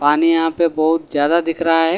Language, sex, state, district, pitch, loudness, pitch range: Hindi, male, Delhi, New Delhi, 165 Hz, -16 LUFS, 155-165 Hz